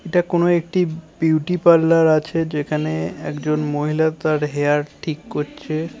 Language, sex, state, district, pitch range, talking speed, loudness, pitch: Bengali, male, West Bengal, Kolkata, 150-165 Hz, 140 wpm, -19 LUFS, 155 Hz